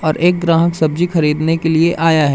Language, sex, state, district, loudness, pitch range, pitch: Hindi, male, Madhya Pradesh, Umaria, -14 LUFS, 155-170 Hz, 165 Hz